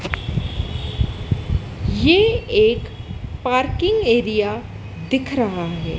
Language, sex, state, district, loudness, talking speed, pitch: Hindi, female, Madhya Pradesh, Dhar, -20 LUFS, 70 wpm, 260 Hz